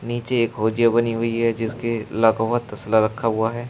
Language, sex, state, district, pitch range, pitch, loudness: Hindi, male, Uttar Pradesh, Shamli, 110-115 Hz, 115 Hz, -21 LUFS